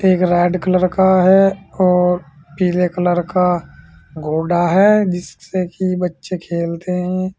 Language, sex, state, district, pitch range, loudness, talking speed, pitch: Hindi, male, Uttar Pradesh, Saharanpur, 175-185 Hz, -16 LUFS, 130 wpm, 180 Hz